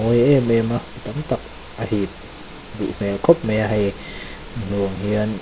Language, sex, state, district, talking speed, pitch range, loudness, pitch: Mizo, male, Mizoram, Aizawl, 190 wpm, 100-120 Hz, -21 LUFS, 110 Hz